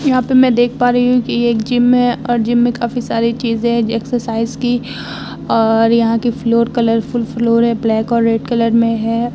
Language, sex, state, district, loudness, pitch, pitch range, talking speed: Hindi, female, Bihar, Vaishali, -14 LUFS, 235 Hz, 230-245 Hz, 220 wpm